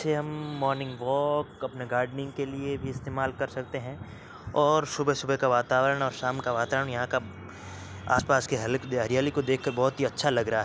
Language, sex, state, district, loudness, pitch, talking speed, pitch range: Hindi, male, Uttar Pradesh, Varanasi, -28 LUFS, 130 Hz, 190 wpm, 125-140 Hz